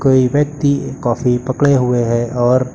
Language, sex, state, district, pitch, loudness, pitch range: Hindi, male, Uttar Pradesh, Lucknow, 130 Hz, -15 LUFS, 120-140 Hz